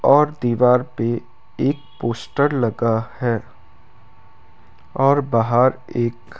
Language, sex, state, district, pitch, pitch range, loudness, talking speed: Hindi, male, Rajasthan, Bikaner, 120 Hz, 110-125 Hz, -20 LUFS, 105 wpm